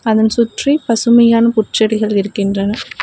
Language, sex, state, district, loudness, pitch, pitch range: Tamil, female, Tamil Nadu, Namakkal, -13 LUFS, 220 Hz, 215-235 Hz